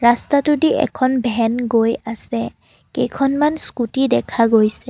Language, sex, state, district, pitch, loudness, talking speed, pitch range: Assamese, female, Assam, Kamrup Metropolitan, 240 Hz, -18 LUFS, 110 wpm, 230-275 Hz